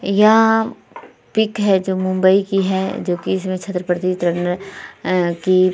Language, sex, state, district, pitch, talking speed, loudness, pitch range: Hindi, female, Bihar, Vaishali, 190 Hz, 125 wpm, -18 LUFS, 185-195 Hz